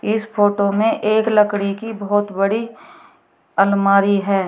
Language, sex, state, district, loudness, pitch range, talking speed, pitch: Hindi, female, Uttar Pradesh, Shamli, -17 LUFS, 200-215 Hz, 135 wpm, 205 Hz